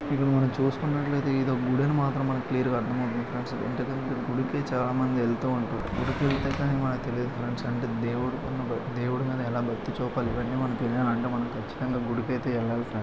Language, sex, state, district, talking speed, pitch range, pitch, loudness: Telugu, male, Andhra Pradesh, Chittoor, 200 wpm, 120-130 Hz, 125 Hz, -28 LUFS